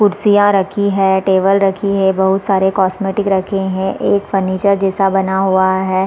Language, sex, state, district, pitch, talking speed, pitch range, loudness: Hindi, female, Chhattisgarh, Raigarh, 195 Hz, 170 wpm, 190-200 Hz, -14 LUFS